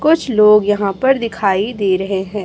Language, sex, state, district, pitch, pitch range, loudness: Hindi, female, Chhattisgarh, Raipur, 205 Hz, 195-230 Hz, -15 LUFS